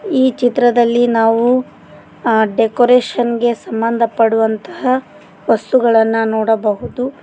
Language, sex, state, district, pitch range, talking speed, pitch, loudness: Kannada, female, Karnataka, Koppal, 225-250 Hz, 85 wpm, 235 Hz, -14 LUFS